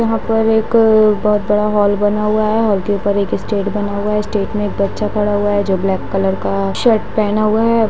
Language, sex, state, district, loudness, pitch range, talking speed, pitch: Hindi, female, Bihar, Jahanabad, -15 LUFS, 205-215 Hz, 245 wpm, 210 Hz